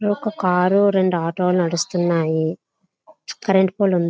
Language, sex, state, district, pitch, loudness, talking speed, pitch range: Telugu, female, Andhra Pradesh, Visakhapatnam, 185 Hz, -19 LUFS, 130 wpm, 175-200 Hz